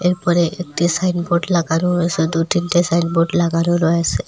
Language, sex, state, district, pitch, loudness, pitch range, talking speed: Bengali, female, Assam, Hailakandi, 170 Hz, -17 LUFS, 165-175 Hz, 155 wpm